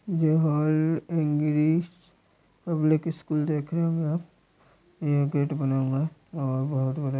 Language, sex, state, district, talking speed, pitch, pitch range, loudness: Hindi, male, Uttar Pradesh, Deoria, 140 wpm, 155 Hz, 145-165 Hz, -26 LUFS